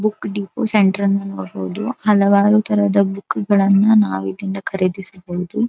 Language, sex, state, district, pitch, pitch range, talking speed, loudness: Kannada, female, Karnataka, Dharwad, 200 Hz, 190-210 Hz, 105 wpm, -17 LUFS